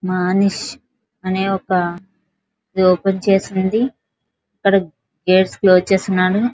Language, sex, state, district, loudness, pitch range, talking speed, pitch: Telugu, female, Andhra Pradesh, Visakhapatnam, -17 LUFS, 185-200 Hz, 110 wpm, 190 Hz